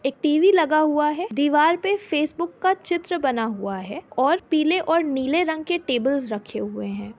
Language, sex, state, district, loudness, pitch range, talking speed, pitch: Hindi, female, Uttar Pradesh, Etah, -22 LUFS, 260-340 Hz, 190 wpm, 300 Hz